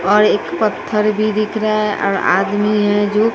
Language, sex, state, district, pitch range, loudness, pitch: Hindi, female, Bihar, West Champaran, 205-215 Hz, -16 LUFS, 210 Hz